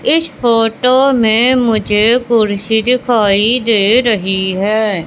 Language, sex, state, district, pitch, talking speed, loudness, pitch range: Hindi, female, Madhya Pradesh, Katni, 225 Hz, 105 wpm, -12 LUFS, 210-245 Hz